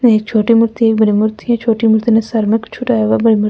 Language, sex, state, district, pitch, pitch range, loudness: Hindi, female, Delhi, New Delhi, 225 Hz, 215-230 Hz, -13 LUFS